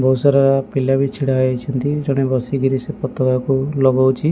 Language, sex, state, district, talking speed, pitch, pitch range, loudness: Odia, male, Odisha, Malkangiri, 165 wpm, 135 Hz, 130-140 Hz, -17 LUFS